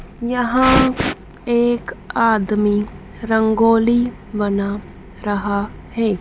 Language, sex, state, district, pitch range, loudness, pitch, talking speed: Hindi, female, Madhya Pradesh, Dhar, 205-240 Hz, -18 LUFS, 225 Hz, 70 wpm